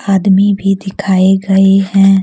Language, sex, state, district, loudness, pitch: Hindi, female, Jharkhand, Deoghar, -10 LUFS, 195 Hz